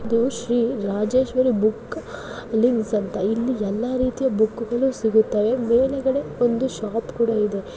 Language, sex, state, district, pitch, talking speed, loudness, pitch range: Kannada, female, Karnataka, Dakshina Kannada, 235 Hz, 125 wpm, -22 LUFS, 220-255 Hz